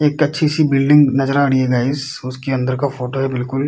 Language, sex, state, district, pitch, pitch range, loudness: Hindi, male, Bihar, Kishanganj, 135 Hz, 130-145 Hz, -16 LUFS